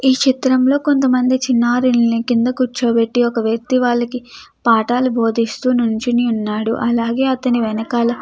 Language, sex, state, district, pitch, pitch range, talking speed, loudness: Telugu, female, Andhra Pradesh, Krishna, 240 Hz, 230-255 Hz, 125 wpm, -16 LUFS